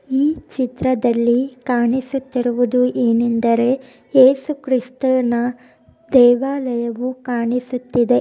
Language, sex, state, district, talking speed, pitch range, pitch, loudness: Kannada, female, Karnataka, Mysore, 50 wpm, 240-260 Hz, 250 Hz, -18 LUFS